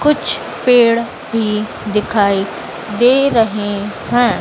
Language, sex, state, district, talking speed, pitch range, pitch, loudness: Hindi, female, Madhya Pradesh, Dhar, 95 wpm, 210-240 Hz, 225 Hz, -15 LUFS